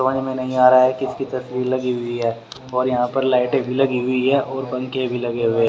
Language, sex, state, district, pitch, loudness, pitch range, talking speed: Hindi, male, Haryana, Rohtak, 130 Hz, -20 LUFS, 125-130 Hz, 265 wpm